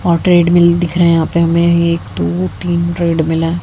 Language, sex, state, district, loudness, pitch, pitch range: Hindi, female, Haryana, Jhajjar, -13 LUFS, 170 Hz, 165-170 Hz